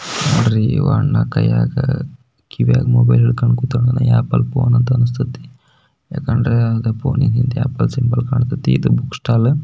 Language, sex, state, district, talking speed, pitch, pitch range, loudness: Kannada, male, Karnataka, Belgaum, 125 wpm, 125 Hz, 115-130 Hz, -16 LUFS